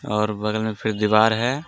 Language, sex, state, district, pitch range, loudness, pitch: Hindi, male, Jharkhand, Garhwa, 105-110 Hz, -21 LUFS, 110 Hz